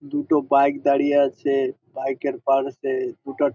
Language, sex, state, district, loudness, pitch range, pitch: Bengali, male, West Bengal, Jhargram, -22 LUFS, 135-160 Hz, 140 Hz